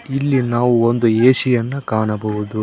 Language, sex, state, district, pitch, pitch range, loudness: Kannada, male, Karnataka, Koppal, 120 Hz, 110-130 Hz, -16 LUFS